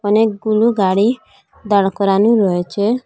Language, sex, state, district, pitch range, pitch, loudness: Bengali, female, Assam, Hailakandi, 195-225 Hz, 210 Hz, -15 LUFS